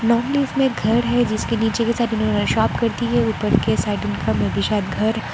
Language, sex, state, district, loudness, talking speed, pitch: Hindi, female, Arunachal Pradesh, Lower Dibang Valley, -20 LUFS, 235 wpm, 220 Hz